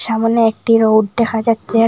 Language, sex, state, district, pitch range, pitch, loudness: Bengali, female, Assam, Hailakandi, 225-230 Hz, 225 Hz, -14 LUFS